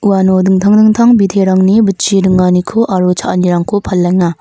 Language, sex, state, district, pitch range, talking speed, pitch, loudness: Garo, female, Meghalaya, North Garo Hills, 180-205 Hz, 120 wpm, 190 Hz, -10 LUFS